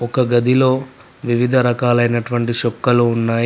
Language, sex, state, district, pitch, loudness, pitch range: Telugu, male, Telangana, Adilabad, 120 Hz, -16 LUFS, 120-125 Hz